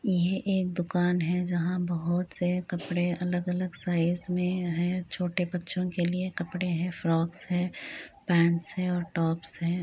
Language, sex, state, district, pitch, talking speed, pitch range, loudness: Hindi, female, Uttar Pradesh, Etah, 180 Hz, 160 wpm, 175-180 Hz, -29 LUFS